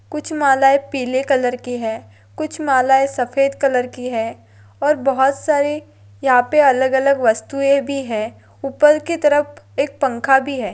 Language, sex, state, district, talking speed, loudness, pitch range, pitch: Hindi, female, Maharashtra, Dhule, 160 wpm, -17 LUFS, 250-280 Hz, 270 Hz